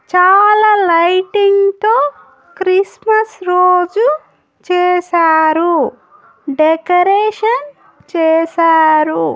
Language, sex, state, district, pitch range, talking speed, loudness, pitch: Telugu, female, Andhra Pradesh, Annamaya, 320-400 Hz, 50 wpm, -12 LUFS, 360 Hz